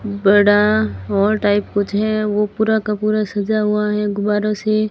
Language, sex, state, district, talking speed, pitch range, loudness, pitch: Hindi, female, Rajasthan, Barmer, 170 wpm, 205-215 Hz, -17 LUFS, 210 Hz